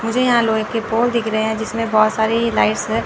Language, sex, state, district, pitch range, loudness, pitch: Hindi, female, Chandigarh, Chandigarh, 220-230 Hz, -17 LUFS, 225 Hz